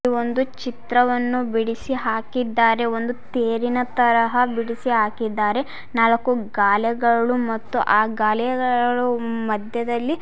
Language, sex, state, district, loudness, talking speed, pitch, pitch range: Kannada, female, Karnataka, Gulbarga, -21 LUFS, 90 wpm, 235 Hz, 225-245 Hz